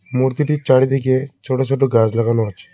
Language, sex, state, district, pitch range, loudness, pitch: Bengali, male, West Bengal, Cooch Behar, 115-135 Hz, -17 LUFS, 130 Hz